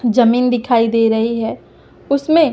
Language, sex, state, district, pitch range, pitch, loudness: Hindi, female, Madhya Pradesh, Umaria, 230-250 Hz, 240 Hz, -15 LUFS